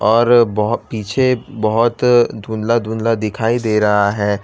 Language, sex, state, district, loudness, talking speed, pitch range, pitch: Hindi, male, Gujarat, Valsad, -16 LUFS, 135 wpm, 105-120 Hz, 110 Hz